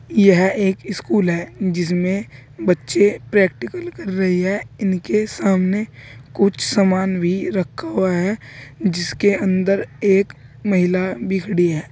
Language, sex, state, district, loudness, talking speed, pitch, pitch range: Hindi, male, Uttar Pradesh, Saharanpur, -19 LUFS, 125 wpm, 190 Hz, 175-200 Hz